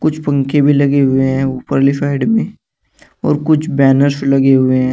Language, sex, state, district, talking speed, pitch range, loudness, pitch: Hindi, male, Uttar Pradesh, Shamli, 180 wpm, 135-145 Hz, -13 LUFS, 140 Hz